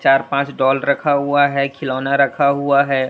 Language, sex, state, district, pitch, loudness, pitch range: Hindi, male, Tripura, West Tripura, 140 Hz, -17 LUFS, 135-140 Hz